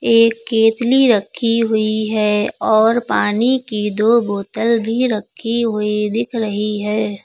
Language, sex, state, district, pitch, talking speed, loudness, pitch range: Hindi, female, Uttar Pradesh, Lucknow, 220 Hz, 130 wpm, -16 LUFS, 210-230 Hz